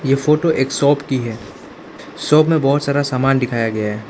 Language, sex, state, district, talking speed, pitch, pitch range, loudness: Hindi, male, Arunachal Pradesh, Lower Dibang Valley, 205 wpm, 135 Hz, 120-150 Hz, -16 LUFS